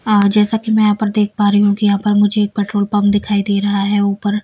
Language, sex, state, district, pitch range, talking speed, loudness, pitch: Hindi, female, Bihar, Patna, 205-210 Hz, 285 wpm, -14 LUFS, 205 Hz